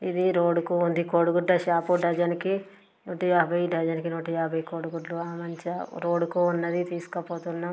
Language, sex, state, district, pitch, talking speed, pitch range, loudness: Telugu, female, Telangana, Karimnagar, 170 Hz, 180 wpm, 170-175 Hz, -26 LUFS